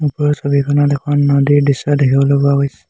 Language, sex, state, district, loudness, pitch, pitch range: Assamese, male, Assam, Hailakandi, -14 LUFS, 140 Hz, 140-145 Hz